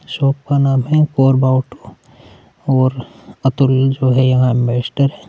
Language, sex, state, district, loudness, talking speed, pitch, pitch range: Hindi, male, Chhattisgarh, Korba, -15 LUFS, 125 wpm, 135 Hz, 130-140 Hz